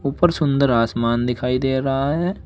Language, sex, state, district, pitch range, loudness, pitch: Hindi, male, Uttar Pradesh, Shamli, 125-145 Hz, -19 LUFS, 135 Hz